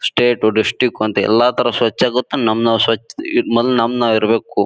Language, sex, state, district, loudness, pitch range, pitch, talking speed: Kannada, male, Karnataka, Bijapur, -15 LUFS, 110-120 Hz, 115 Hz, 180 wpm